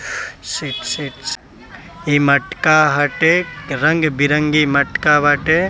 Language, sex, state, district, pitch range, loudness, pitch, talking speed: Bhojpuri, male, Bihar, East Champaran, 145-160 Hz, -16 LUFS, 150 Hz, 105 wpm